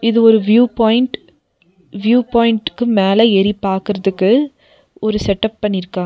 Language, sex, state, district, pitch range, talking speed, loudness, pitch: Tamil, female, Tamil Nadu, Nilgiris, 195-235 Hz, 120 wpm, -14 LUFS, 220 Hz